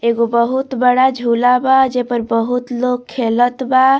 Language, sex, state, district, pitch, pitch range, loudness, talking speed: Bhojpuri, female, Bihar, Muzaffarpur, 250 Hz, 235-260 Hz, -15 LUFS, 165 wpm